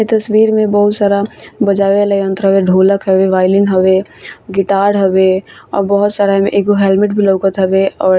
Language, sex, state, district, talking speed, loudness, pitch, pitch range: Bhojpuri, female, Bihar, Saran, 185 wpm, -12 LUFS, 195 Hz, 190-205 Hz